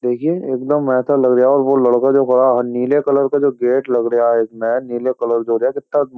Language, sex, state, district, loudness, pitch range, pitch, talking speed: Hindi, male, Uttar Pradesh, Jyotiba Phule Nagar, -16 LUFS, 120-140 Hz, 130 Hz, 245 wpm